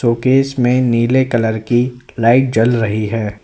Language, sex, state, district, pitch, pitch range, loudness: Hindi, male, Uttar Pradesh, Lalitpur, 120 Hz, 115-125 Hz, -15 LUFS